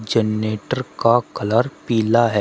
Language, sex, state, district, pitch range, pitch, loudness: Hindi, male, Uttar Pradesh, Shamli, 110-120 Hz, 115 Hz, -19 LUFS